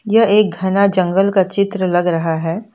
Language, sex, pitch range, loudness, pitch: Hindi, female, 180-205 Hz, -15 LUFS, 190 Hz